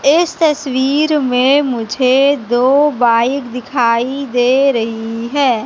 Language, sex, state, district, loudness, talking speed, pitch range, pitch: Hindi, female, Madhya Pradesh, Katni, -14 LUFS, 105 wpm, 240-280 Hz, 260 Hz